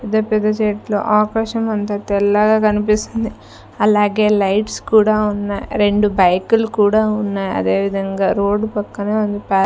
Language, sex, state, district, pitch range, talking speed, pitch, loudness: Telugu, female, Andhra Pradesh, Sri Satya Sai, 200-215 Hz, 130 wpm, 210 Hz, -16 LUFS